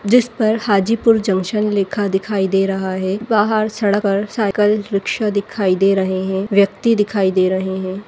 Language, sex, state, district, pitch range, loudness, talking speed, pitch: Hindi, female, Chhattisgarh, Rajnandgaon, 190-215 Hz, -17 LUFS, 165 wpm, 200 Hz